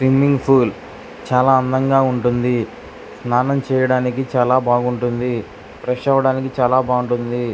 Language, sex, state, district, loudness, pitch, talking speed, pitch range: Telugu, male, Andhra Pradesh, Krishna, -17 LUFS, 125 Hz, 105 wpm, 120-130 Hz